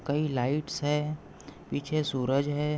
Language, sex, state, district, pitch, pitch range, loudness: Hindi, male, Maharashtra, Pune, 145 Hz, 140-150 Hz, -30 LUFS